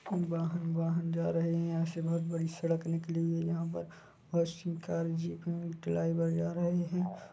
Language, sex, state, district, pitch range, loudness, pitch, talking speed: Hindi, male, Chhattisgarh, Bilaspur, 165-170 Hz, -34 LUFS, 165 Hz, 195 wpm